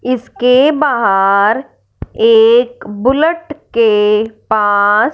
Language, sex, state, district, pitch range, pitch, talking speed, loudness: Hindi, female, Punjab, Fazilka, 210-300 Hz, 250 Hz, 70 wpm, -12 LUFS